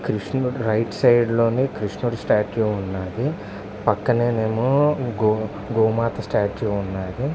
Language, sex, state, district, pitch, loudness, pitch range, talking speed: Telugu, male, Andhra Pradesh, Visakhapatnam, 110 Hz, -22 LUFS, 105-120 Hz, 80 wpm